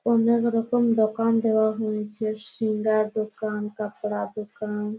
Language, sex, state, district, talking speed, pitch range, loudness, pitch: Bengali, female, West Bengal, Malda, 120 wpm, 215-225 Hz, -25 LUFS, 215 Hz